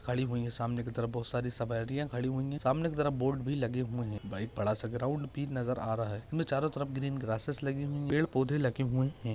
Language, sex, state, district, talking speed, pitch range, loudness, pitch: Hindi, male, Maharashtra, Pune, 270 wpm, 120-140 Hz, -34 LUFS, 130 Hz